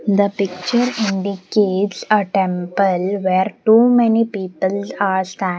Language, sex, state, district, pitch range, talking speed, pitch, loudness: English, female, Maharashtra, Mumbai Suburban, 185-215 Hz, 130 wpm, 200 Hz, -17 LUFS